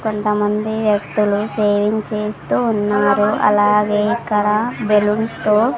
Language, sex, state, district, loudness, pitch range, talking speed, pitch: Telugu, female, Andhra Pradesh, Sri Satya Sai, -17 LUFS, 210-215 Hz, 105 wpm, 210 Hz